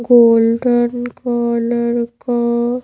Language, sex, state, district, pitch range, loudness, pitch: Hindi, female, Madhya Pradesh, Bhopal, 235-245 Hz, -15 LUFS, 240 Hz